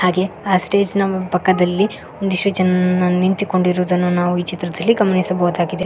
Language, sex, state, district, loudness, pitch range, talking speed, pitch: Kannada, female, Karnataka, Koppal, -17 LUFS, 180-190 Hz, 125 wpm, 185 Hz